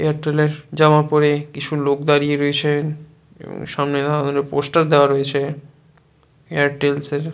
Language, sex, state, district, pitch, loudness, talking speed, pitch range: Bengali, male, West Bengal, Jalpaiguri, 150 Hz, -18 LUFS, 140 wpm, 145-150 Hz